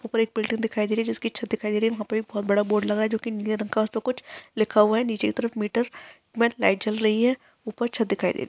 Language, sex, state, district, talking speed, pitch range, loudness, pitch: Hindi, female, Bihar, Kishanganj, 330 wpm, 215-230 Hz, -25 LUFS, 220 Hz